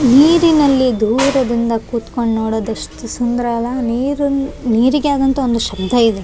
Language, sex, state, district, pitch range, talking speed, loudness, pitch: Kannada, female, Karnataka, Raichur, 230-275 Hz, 155 wpm, -15 LUFS, 245 Hz